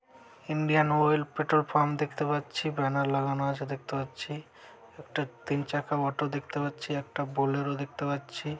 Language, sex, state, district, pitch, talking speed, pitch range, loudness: Bengali, male, West Bengal, Malda, 145 Hz, 145 wpm, 140-150 Hz, -30 LUFS